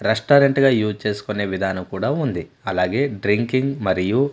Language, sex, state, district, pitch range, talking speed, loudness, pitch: Telugu, male, Andhra Pradesh, Manyam, 95-135 Hz, 155 wpm, -20 LUFS, 105 Hz